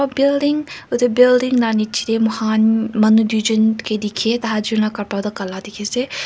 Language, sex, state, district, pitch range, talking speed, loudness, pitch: Nagamese, female, Nagaland, Kohima, 215-245 Hz, 165 wpm, -17 LUFS, 220 Hz